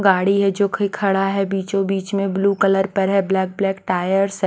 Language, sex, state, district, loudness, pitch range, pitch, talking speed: Hindi, female, Maharashtra, Washim, -19 LUFS, 195-200 Hz, 195 Hz, 230 wpm